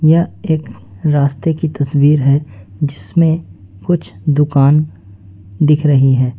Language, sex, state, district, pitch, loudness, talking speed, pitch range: Hindi, male, West Bengal, Alipurduar, 145 Hz, -14 LUFS, 115 wpm, 100-155 Hz